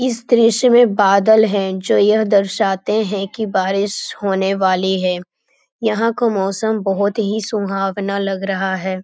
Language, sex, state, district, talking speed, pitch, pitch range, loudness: Hindi, female, Bihar, Jamui, 160 wpm, 200 Hz, 195-220 Hz, -16 LUFS